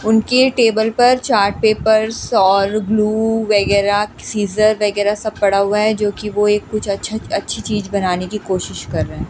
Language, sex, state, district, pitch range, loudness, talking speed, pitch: Hindi, female, Delhi, New Delhi, 205-220 Hz, -16 LUFS, 180 wpm, 210 Hz